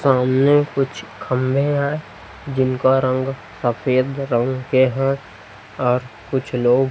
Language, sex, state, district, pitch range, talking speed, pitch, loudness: Hindi, male, Chhattisgarh, Raipur, 125-135 Hz, 120 wpm, 130 Hz, -19 LUFS